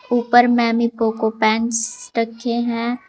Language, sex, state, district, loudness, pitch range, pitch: Hindi, female, Uttar Pradesh, Saharanpur, -18 LUFS, 230-240 Hz, 235 Hz